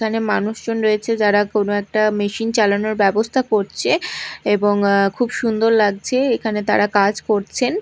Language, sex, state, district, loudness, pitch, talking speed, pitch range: Bengali, female, Odisha, Malkangiri, -18 LUFS, 215 Hz, 140 wpm, 205-225 Hz